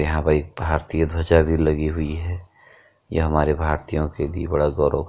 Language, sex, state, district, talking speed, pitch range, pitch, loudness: Hindi, male, Uttar Pradesh, Jyotiba Phule Nagar, 200 wpm, 75-80 Hz, 80 Hz, -22 LUFS